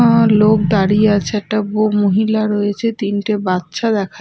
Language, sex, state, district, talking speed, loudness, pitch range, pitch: Bengali, female, Odisha, Malkangiri, 155 wpm, -15 LUFS, 200-215 Hz, 210 Hz